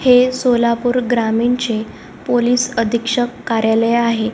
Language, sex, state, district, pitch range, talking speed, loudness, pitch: Marathi, female, Maharashtra, Solapur, 230-245 Hz, 110 wpm, -16 LUFS, 235 Hz